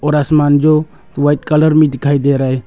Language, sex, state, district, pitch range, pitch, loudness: Hindi, male, Arunachal Pradesh, Longding, 140-155 Hz, 145 Hz, -12 LUFS